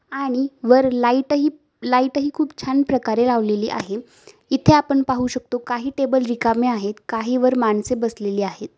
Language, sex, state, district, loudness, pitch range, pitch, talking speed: Marathi, female, Maharashtra, Aurangabad, -20 LUFS, 230-275 Hz, 255 Hz, 165 wpm